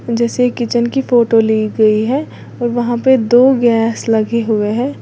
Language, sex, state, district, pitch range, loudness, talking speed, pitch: Hindi, female, Uttar Pradesh, Lalitpur, 225-245 Hz, -14 LUFS, 180 wpm, 235 Hz